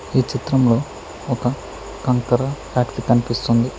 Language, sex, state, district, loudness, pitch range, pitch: Telugu, male, Telangana, Mahabubabad, -20 LUFS, 120-130 Hz, 125 Hz